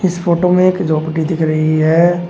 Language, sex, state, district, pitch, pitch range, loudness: Hindi, male, Uttar Pradesh, Shamli, 170 Hz, 160-175 Hz, -14 LUFS